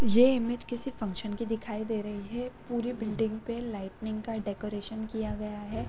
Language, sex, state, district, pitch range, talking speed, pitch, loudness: Hindi, female, Bihar, Sitamarhi, 210-235 Hz, 185 wpm, 220 Hz, -32 LUFS